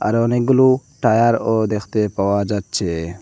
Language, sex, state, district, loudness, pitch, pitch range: Bengali, male, Assam, Hailakandi, -18 LUFS, 110 Hz, 100-120 Hz